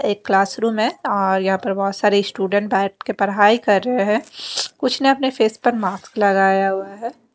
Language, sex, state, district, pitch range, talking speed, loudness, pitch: Hindi, female, Maharashtra, Mumbai Suburban, 195-235 Hz, 195 wpm, -18 LUFS, 205 Hz